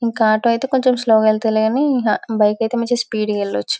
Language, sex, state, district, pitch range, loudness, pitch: Telugu, female, Telangana, Karimnagar, 215-240 Hz, -17 LUFS, 225 Hz